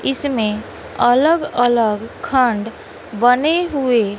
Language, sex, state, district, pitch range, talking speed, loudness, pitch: Hindi, female, Bihar, West Champaran, 225-280 Hz, 85 wpm, -17 LUFS, 245 Hz